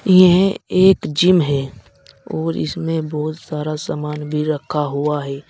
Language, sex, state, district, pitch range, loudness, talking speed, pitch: Hindi, male, Uttar Pradesh, Saharanpur, 140-170 Hz, -18 LUFS, 140 wpm, 150 Hz